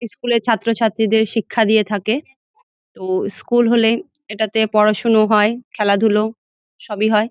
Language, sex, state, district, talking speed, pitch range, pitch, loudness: Bengali, female, West Bengal, Jalpaiguri, 140 wpm, 210-230 Hz, 220 Hz, -17 LUFS